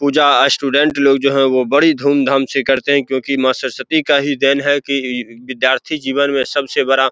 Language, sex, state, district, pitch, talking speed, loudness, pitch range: Hindi, male, Bihar, Begusarai, 140 Hz, 210 wpm, -14 LUFS, 130-140 Hz